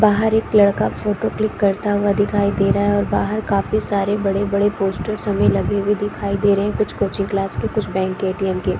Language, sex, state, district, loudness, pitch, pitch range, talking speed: Hindi, female, Chhattisgarh, Korba, -19 LUFS, 205 Hz, 195-210 Hz, 230 wpm